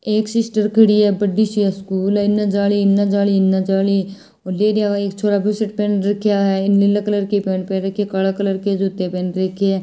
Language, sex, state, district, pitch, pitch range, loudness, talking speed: Hindi, female, Rajasthan, Churu, 200 Hz, 195-205 Hz, -17 LUFS, 215 wpm